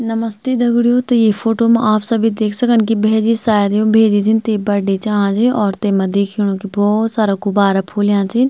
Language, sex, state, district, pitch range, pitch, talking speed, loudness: Garhwali, female, Uttarakhand, Tehri Garhwal, 205-225 Hz, 215 Hz, 205 wpm, -15 LUFS